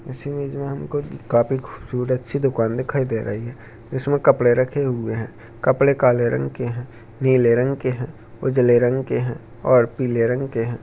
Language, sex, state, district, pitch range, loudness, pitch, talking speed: Hindi, male, Rajasthan, Churu, 115-135 Hz, -21 LUFS, 125 Hz, 185 wpm